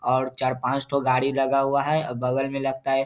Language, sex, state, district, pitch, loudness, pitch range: Hindi, male, Bihar, Saharsa, 135 Hz, -24 LUFS, 130-135 Hz